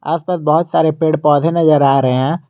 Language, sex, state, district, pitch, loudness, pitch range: Hindi, male, Jharkhand, Garhwa, 160 Hz, -14 LUFS, 145-165 Hz